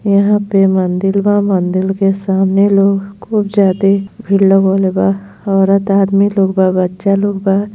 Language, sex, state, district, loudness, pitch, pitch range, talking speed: Bhojpuri, female, Uttar Pradesh, Gorakhpur, -13 LUFS, 195 Hz, 190-200 Hz, 155 wpm